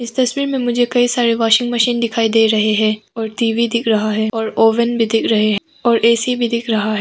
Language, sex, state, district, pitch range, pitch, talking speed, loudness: Hindi, female, Arunachal Pradesh, Papum Pare, 220-240 Hz, 230 Hz, 240 wpm, -16 LUFS